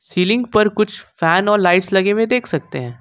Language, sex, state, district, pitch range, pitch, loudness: Hindi, male, Jharkhand, Ranchi, 180-215 Hz, 200 Hz, -16 LUFS